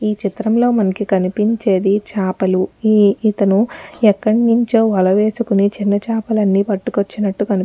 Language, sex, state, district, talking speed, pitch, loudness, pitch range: Telugu, female, Telangana, Nalgonda, 95 wpm, 210 Hz, -16 LUFS, 200-225 Hz